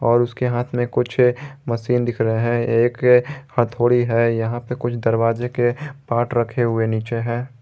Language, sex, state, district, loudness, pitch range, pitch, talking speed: Hindi, male, Jharkhand, Garhwa, -20 LUFS, 115-125 Hz, 120 Hz, 175 wpm